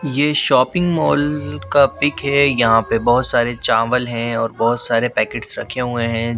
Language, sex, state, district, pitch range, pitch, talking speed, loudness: Hindi, male, Bihar, Katihar, 115-140 Hz, 120 Hz, 180 wpm, -17 LUFS